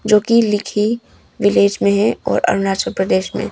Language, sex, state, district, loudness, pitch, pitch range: Hindi, female, Arunachal Pradesh, Longding, -16 LUFS, 210 Hz, 200-220 Hz